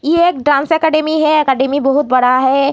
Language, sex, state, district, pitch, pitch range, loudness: Hindi, female, Bihar, Jamui, 285 Hz, 270-310 Hz, -13 LUFS